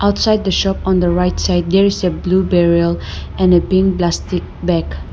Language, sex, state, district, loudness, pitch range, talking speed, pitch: English, female, Nagaland, Dimapur, -15 LUFS, 175-190 Hz, 200 wpm, 180 Hz